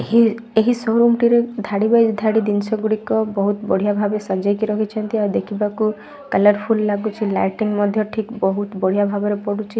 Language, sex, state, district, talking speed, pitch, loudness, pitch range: Odia, female, Odisha, Malkangiri, 155 wpm, 215 Hz, -19 LUFS, 205-220 Hz